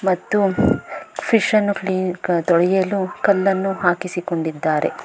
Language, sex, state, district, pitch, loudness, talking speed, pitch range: Kannada, female, Karnataka, Bangalore, 190 Hz, -19 LUFS, 105 wpm, 175-195 Hz